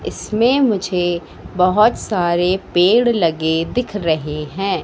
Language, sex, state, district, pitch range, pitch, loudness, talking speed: Hindi, female, Madhya Pradesh, Katni, 170-215 Hz, 180 Hz, -17 LUFS, 110 wpm